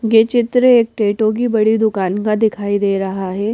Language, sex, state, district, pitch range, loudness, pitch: Hindi, female, Madhya Pradesh, Bhopal, 205-225 Hz, -15 LUFS, 215 Hz